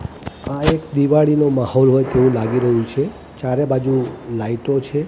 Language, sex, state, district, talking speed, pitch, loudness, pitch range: Gujarati, male, Gujarat, Gandhinagar, 155 wpm, 130 Hz, -17 LUFS, 125-145 Hz